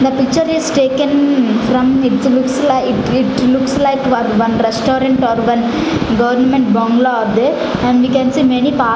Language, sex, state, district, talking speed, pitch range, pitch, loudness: English, female, Punjab, Fazilka, 175 wpm, 235-270 Hz, 255 Hz, -13 LUFS